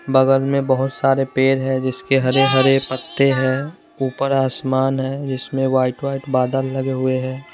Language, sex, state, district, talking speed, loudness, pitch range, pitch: Hindi, male, Chandigarh, Chandigarh, 165 wpm, -18 LUFS, 130-135 Hz, 135 Hz